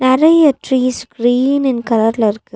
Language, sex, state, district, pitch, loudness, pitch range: Tamil, female, Tamil Nadu, Nilgiris, 255 Hz, -14 LUFS, 230-270 Hz